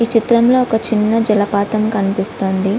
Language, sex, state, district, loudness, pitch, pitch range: Telugu, female, Andhra Pradesh, Visakhapatnam, -15 LUFS, 215 Hz, 200-230 Hz